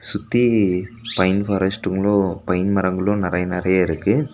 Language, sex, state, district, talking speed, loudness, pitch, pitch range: Tamil, male, Tamil Nadu, Nilgiris, 110 wpm, -20 LUFS, 95 Hz, 90-100 Hz